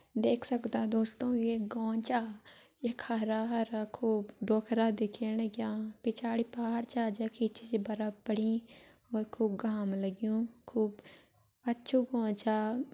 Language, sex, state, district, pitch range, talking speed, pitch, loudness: Garhwali, female, Uttarakhand, Uttarkashi, 220-235 Hz, 130 wpm, 225 Hz, -34 LUFS